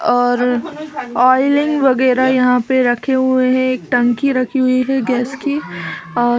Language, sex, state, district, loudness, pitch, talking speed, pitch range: Hindi, female, Uttar Pradesh, Budaun, -15 LUFS, 255 Hz, 160 wpm, 245-265 Hz